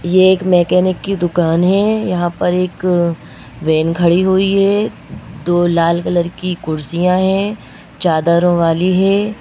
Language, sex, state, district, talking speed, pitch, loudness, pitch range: Hindi, female, Madhya Pradesh, Bhopal, 70 wpm, 175 Hz, -14 LUFS, 170-190 Hz